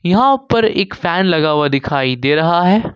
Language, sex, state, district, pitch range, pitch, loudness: Hindi, male, Jharkhand, Ranchi, 145-195 Hz, 170 Hz, -14 LUFS